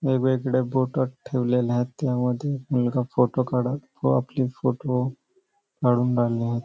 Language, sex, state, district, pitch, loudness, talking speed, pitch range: Marathi, male, Maharashtra, Nagpur, 125 Hz, -24 LUFS, 125 wpm, 125-130 Hz